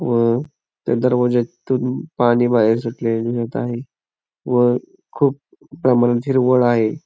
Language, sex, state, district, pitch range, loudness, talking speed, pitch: Marathi, male, Maharashtra, Pune, 120-125 Hz, -18 LUFS, 110 wpm, 120 Hz